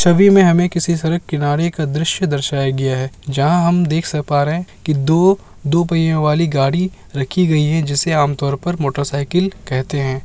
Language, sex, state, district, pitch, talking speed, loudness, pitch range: Hindi, male, Bihar, Kishanganj, 155 Hz, 205 wpm, -16 LUFS, 140-170 Hz